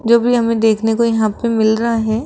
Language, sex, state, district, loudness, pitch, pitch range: Hindi, female, Rajasthan, Jaipur, -15 LUFS, 230 Hz, 220-235 Hz